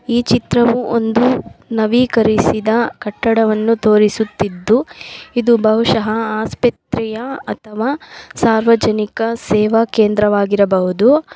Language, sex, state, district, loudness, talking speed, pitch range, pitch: Kannada, female, Karnataka, Bangalore, -15 LUFS, 70 wpm, 215-235 Hz, 225 Hz